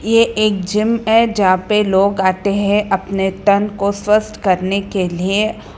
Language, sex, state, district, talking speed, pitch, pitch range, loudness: Hindi, female, Karnataka, Bangalore, 165 wpm, 200 Hz, 190-215 Hz, -15 LUFS